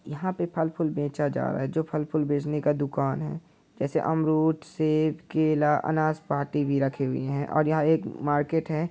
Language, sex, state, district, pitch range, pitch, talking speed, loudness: Hindi, male, Chhattisgarh, Kabirdham, 145-160 Hz, 155 Hz, 200 wpm, -26 LUFS